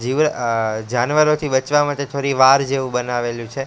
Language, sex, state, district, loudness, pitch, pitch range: Gujarati, male, Gujarat, Gandhinagar, -18 LUFS, 135 Hz, 120-145 Hz